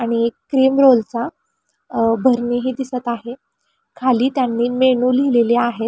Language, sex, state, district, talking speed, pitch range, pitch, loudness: Marathi, female, Maharashtra, Pune, 130 wpm, 235-265 Hz, 250 Hz, -17 LUFS